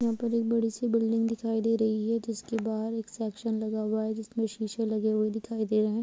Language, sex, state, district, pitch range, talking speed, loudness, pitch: Hindi, female, Uttar Pradesh, Muzaffarnagar, 220-230 Hz, 250 wpm, -30 LUFS, 225 Hz